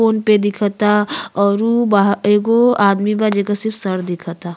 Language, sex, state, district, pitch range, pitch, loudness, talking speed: Bhojpuri, female, Uttar Pradesh, Ghazipur, 200-215 Hz, 205 Hz, -15 LUFS, 170 wpm